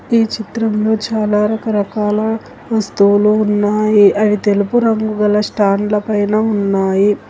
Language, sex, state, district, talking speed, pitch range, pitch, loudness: Telugu, female, Telangana, Hyderabad, 115 wpm, 205-220 Hz, 210 Hz, -14 LUFS